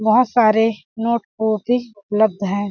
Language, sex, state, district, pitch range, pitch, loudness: Hindi, female, Chhattisgarh, Balrampur, 210-235 Hz, 220 Hz, -18 LUFS